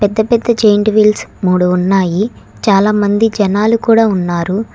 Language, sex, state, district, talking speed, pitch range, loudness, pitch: Telugu, female, Telangana, Hyderabad, 125 wpm, 190-220 Hz, -12 LUFS, 210 Hz